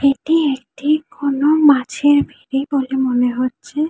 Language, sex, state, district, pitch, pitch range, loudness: Bengali, female, West Bengal, Jhargram, 280 Hz, 265-295 Hz, -17 LUFS